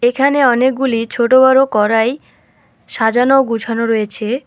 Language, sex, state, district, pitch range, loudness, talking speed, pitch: Bengali, female, West Bengal, Alipurduar, 225-260 Hz, -13 LUFS, 95 wpm, 240 Hz